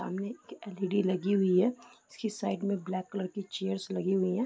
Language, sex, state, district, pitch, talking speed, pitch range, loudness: Hindi, female, Uttar Pradesh, Varanasi, 195 Hz, 240 wpm, 185-205 Hz, -32 LUFS